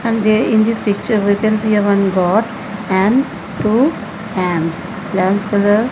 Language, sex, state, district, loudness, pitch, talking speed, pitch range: English, female, Punjab, Fazilka, -16 LUFS, 210 Hz, 130 wpm, 195-220 Hz